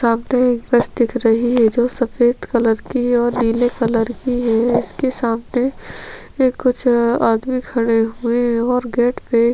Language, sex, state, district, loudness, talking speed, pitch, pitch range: Hindi, female, Chhattisgarh, Sukma, -17 LUFS, 145 wpm, 240 Hz, 230-250 Hz